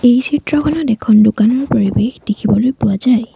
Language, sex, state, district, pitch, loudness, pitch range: Assamese, female, Assam, Sonitpur, 235 Hz, -14 LUFS, 215-260 Hz